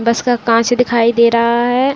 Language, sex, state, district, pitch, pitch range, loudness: Hindi, female, Chhattisgarh, Raigarh, 235 Hz, 235-245 Hz, -13 LUFS